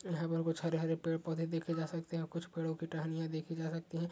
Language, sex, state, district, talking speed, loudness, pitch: Hindi, male, Uttar Pradesh, Etah, 260 wpm, -38 LUFS, 165 Hz